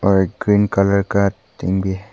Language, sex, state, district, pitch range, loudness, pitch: Hindi, male, Arunachal Pradesh, Papum Pare, 95-100 Hz, -18 LUFS, 100 Hz